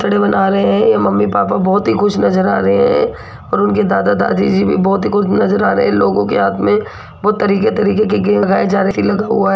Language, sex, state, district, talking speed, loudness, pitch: Hindi, female, Rajasthan, Jaipur, 255 wpm, -13 LUFS, 195 Hz